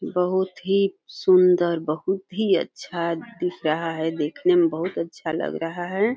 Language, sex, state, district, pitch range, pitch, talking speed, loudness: Hindi, female, Uttar Pradesh, Deoria, 165-195 Hz, 180 Hz, 155 wpm, -23 LUFS